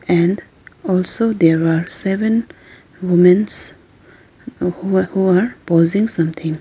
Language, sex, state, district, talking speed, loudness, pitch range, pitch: English, female, Arunachal Pradesh, Lower Dibang Valley, 110 wpm, -16 LUFS, 165-195 Hz, 180 Hz